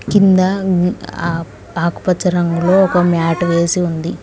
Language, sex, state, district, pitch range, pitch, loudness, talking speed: Telugu, female, Telangana, Mahabubabad, 170-185 Hz, 175 Hz, -15 LUFS, 125 wpm